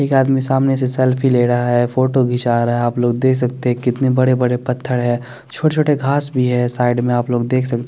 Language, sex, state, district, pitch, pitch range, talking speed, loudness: Hindi, male, Chandigarh, Chandigarh, 125 Hz, 120-130 Hz, 260 wpm, -16 LUFS